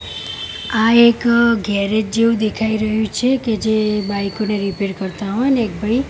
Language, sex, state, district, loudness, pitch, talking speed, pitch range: Gujarati, female, Gujarat, Gandhinagar, -17 LUFS, 220 Hz, 165 wpm, 205-235 Hz